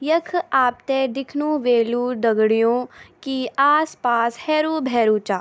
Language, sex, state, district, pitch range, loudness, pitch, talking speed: Garhwali, female, Uttarakhand, Tehri Garhwal, 235-300 Hz, -20 LUFS, 255 Hz, 135 wpm